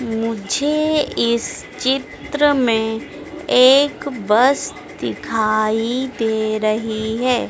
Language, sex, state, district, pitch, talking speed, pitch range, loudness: Hindi, female, Madhya Pradesh, Dhar, 235 Hz, 80 wpm, 220-270 Hz, -18 LUFS